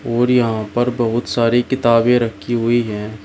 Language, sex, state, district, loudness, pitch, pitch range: Hindi, male, Uttar Pradesh, Shamli, -17 LUFS, 120 Hz, 115-120 Hz